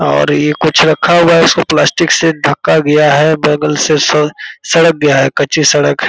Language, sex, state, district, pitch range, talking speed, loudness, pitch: Hindi, male, Bihar, Purnia, 145-160 Hz, 215 wpm, -10 LUFS, 150 Hz